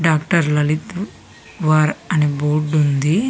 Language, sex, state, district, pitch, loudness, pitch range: Telugu, female, Andhra Pradesh, Visakhapatnam, 155 Hz, -18 LUFS, 150-170 Hz